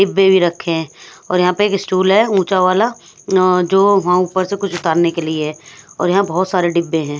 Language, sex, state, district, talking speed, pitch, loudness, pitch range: Hindi, female, Punjab, Pathankot, 225 wpm, 185 Hz, -15 LUFS, 170-195 Hz